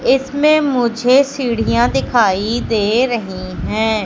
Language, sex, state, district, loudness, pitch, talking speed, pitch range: Hindi, female, Madhya Pradesh, Katni, -15 LUFS, 240 Hz, 105 wpm, 215-260 Hz